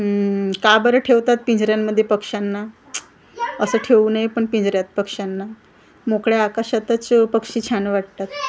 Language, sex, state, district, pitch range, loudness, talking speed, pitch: Marathi, female, Maharashtra, Gondia, 205-230 Hz, -19 LUFS, 125 wpm, 220 Hz